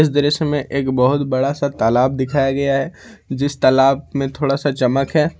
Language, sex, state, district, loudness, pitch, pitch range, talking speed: Hindi, male, Jharkhand, Ranchi, -17 LUFS, 140 Hz, 130-145 Hz, 200 wpm